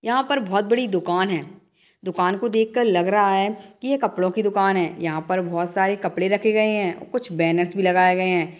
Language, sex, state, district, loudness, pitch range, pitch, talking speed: Hindi, female, Uttar Pradesh, Jalaun, -21 LUFS, 180-210 Hz, 190 Hz, 245 wpm